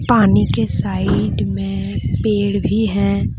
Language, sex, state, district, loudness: Hindi, female, Jharkhand, Deoghar, -17 LUFS